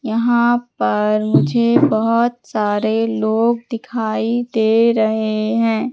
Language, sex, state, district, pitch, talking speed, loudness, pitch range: Hindi, female, Madhya Pradesh, Katni, 225 Hz, 100 wpm, -17 LUFS, 220-235 Hz